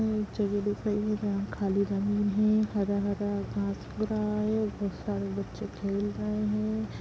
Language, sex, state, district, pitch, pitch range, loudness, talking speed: Hindi, female, Bihar, Lakhisarai, 205 Hz, 200-210 Hz, -30 LUFS, 170 wpm